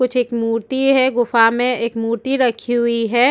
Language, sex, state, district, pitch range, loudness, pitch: Hindi, female, Chhattisgarh, Rajnandgaon, 230-255 Hz, -17 LUFS, 240 Hz